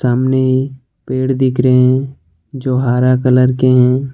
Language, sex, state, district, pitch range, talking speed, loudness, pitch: Hindi, male, Jharkhand, Ranchi, 125-130 Hz, 160 wpm, -13 LUFS, 130 Hz